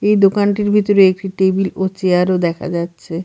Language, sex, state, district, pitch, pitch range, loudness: Bengali, female, Bihar, Katihar, 190 Hz, 180-200 Hz, -15 LUFS